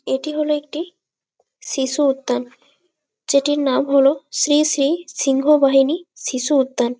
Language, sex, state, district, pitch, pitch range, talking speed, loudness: Bengali, female, West Bengal, Malda, 280 Hz, 270-300 Hz, 110 wpm, -18 LUFS